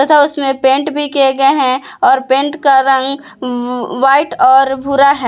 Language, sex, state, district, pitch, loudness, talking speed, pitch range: Hindi, female, Jharkhand, Palamu, 275 Hz, -12 LUFS, 180 wpm, 265-285 Hz